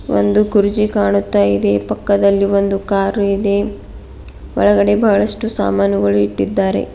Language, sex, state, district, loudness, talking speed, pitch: Kannada, female, Karnataka, Bidar, -15 LUFS, 105 wpm, 195 Hz